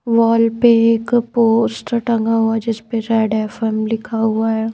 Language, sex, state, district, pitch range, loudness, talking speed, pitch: Hindi, female, Madhya Pradesh, Bhopal, 225-230 Hz, -16 LUFS, 165 wpm, 225 Hz